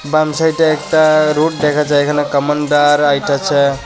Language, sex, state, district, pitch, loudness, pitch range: Bengali, male, Tripura, West Tripura, 150 Hz, -13 LUFS, 145-155 Hz